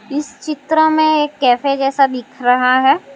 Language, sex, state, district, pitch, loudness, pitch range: Hindi, female, Gujarat, Valsad, 275 Hz, -15 LUFS, 260-300 Hz